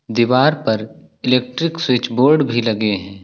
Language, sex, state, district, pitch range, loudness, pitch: Hindi, male, Uttar Pradesh, Lucknow, 110-140 Hz, -17 LUFS, 125 Hz